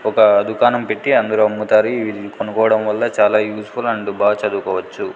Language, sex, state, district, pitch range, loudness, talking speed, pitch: Telugu, male, Andhra Pradesh, Sri Satya Sai, 105-110 Hz, -17 LUFS, 165 wpm, 110 Hz